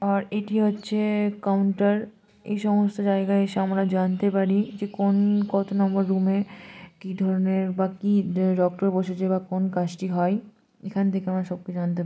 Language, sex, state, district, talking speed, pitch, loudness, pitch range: Bengali, female, West Bengal, Malda, 170 wpm, 195 Hz, -24 LUFS, 185-205 Hz